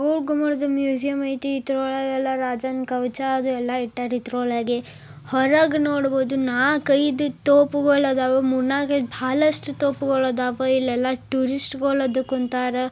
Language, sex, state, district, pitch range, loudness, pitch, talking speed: Kannada, female, Karnataka, Bijapur, 255-280 Hz, -22 LUFS, 265 Hz, 115 wpm